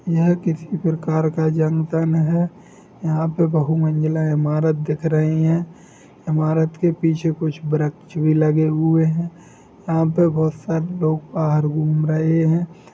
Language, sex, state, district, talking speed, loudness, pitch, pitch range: Hindi, male, Jharkhand, Jamtara, 150 wpm, -19 LUFS, 160 Hz, 155-165 Hz